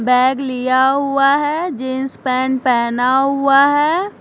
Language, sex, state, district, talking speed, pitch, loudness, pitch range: Hindi, female, Punjab, Fazilka, 130 wpm, 265 Hz, -15 LUFS, 255-280 Hz